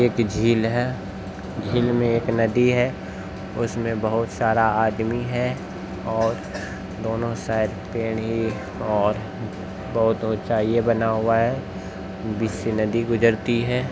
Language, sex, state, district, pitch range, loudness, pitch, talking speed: Maithili, male, Bihar, Bhagalpur, 105-115 Hz, -23 LUFS, 110 Hz, 130 wpm